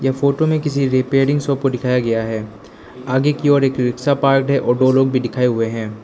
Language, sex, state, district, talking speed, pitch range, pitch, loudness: Hindi, male, Arunachal Pradesh, Lower Dibang Valley, 230 wpm, 125-140 Hz, 130 Hz, -17 LUFS